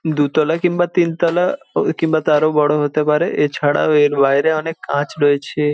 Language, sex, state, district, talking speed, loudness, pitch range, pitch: Bengali, male, West Bengal, Jhargram, 155 wpm, -16 LUFS, 145-160 Hz, 150 Hz